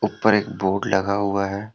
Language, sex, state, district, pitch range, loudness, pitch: Hindi, male, Jharkhand, Deoghar, 100-105 Hz, -21 LUFS, 100 Hz